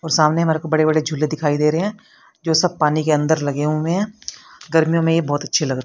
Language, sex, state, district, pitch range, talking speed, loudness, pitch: Hindi, female, Haryana, Rohtak, 150-165 Hz, 255 wpm, -18 LUFS, 155 Hz